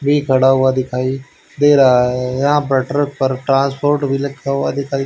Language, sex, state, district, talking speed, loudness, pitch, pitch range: Hindi, male, Haryana, Charkhi Dadri, 190 wpm, -15 LUFS, 135 Hz, 130-140 Hz